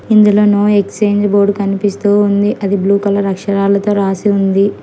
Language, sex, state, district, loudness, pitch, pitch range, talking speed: Telugu, female, Telangana, Hyderabad, -12 LUFS, 200 Hz, 200-205 Hz, 150 wpm